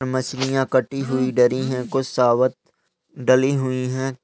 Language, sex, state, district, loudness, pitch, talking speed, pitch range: Hindi, male, Uttar Pradesh, Hamirpur, -21 LUFS, 130 Hz, 140 wpm, 130-135 Hz